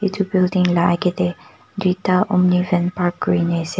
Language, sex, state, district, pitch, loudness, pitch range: Nagamese, female, Nagaland, Kohima, 180 Hz, -18 LUFS, 175-185 Hz